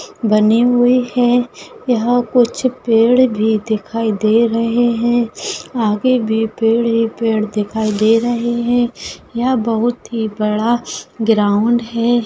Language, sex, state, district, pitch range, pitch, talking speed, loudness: Hindi, female, Maharashtra, Solapur, 220-240 Hz, 230 Hz, 125 wpm, -15 LUFS